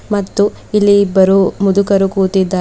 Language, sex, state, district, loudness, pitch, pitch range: Kannada, female, Karnataka, Bidar, -12 LUFS, 195 Hz, 195-200 Hz